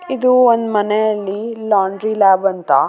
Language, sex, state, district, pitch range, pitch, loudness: Kannada, female, Karnataka, Raichur, 195-230 Hz, 210 Hz, -15 LUFS